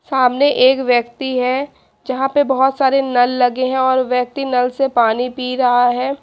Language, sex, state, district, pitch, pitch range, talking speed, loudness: Hindi, female, Haryana, Charkhi Dadri, 255 Hz, 250-270 Hz, 185 wpm, -16 LUFS